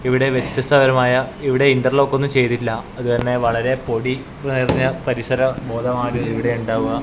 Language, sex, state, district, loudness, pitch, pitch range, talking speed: Malayalam, male, Kerala, Kasaragod, -18 LUFS, 130 Hz, 120-135 Hz, 130 wpm